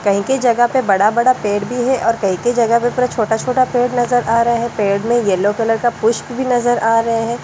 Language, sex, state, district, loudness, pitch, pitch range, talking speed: Hindi, female, Delhi, New Delhi, -15 LUFS, 235 Hz, 220-245 Hz, 225 wpm